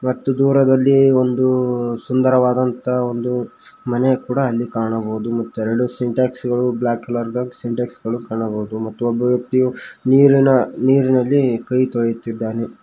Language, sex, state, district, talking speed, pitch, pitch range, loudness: Kannada, male, Karnataka, Koppal, 120 wpm, 125 Hz, 120-130 Hz, -18 LUFS